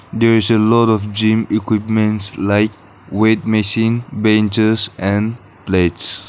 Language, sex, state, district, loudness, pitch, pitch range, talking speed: English, male, Nagaland, Dimapur, -15 LUFS, 110 Hz, 100-110 Hz, 125 wpm